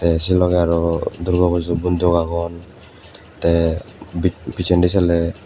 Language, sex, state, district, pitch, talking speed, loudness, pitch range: Chakma, male, Tripura, Unakoti, 85 Hz, 130 wpm, -18 LUFS, 85-90 Hz